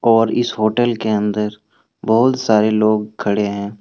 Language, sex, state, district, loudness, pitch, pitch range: Hindi, male, Jharkhand, Deoghar, -17 LUFS, 110 Hz, 105-115 Hz